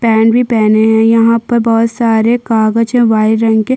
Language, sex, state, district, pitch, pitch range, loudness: Hindi, female, Chhattisgarh, Sukma, 225 Hz, 220-230 Hz, -10 LUFS